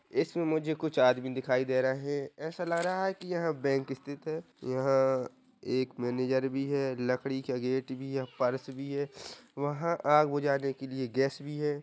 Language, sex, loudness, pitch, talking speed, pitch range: Hindi, male, -31 LUFS, 135 Hz, 200 wpm, 130-150 Hz